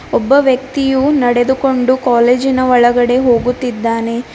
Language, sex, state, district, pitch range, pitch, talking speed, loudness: Kannada, female, Karnataka, Bidar, 240-265 Hz, 250 Hz, 85 wpm, -12 LUFS